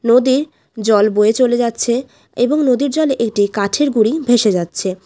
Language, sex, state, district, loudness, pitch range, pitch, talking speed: Bengali, female, West Bengal, Alipurduar, -15 LUFS, 210-260 Hz, 235 Hz, 155 wpm